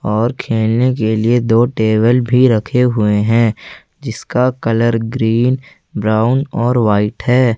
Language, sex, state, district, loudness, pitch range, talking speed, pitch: Hindi, male, Jharkhand, Ranchi, -14 LUFS, 110-125 Hz, 135 wpm, 115 Hz